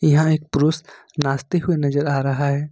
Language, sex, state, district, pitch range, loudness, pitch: Hindi, male, Jharkhand, Ranchi, 140-155 Hz, -20 LUFS, 150 Hz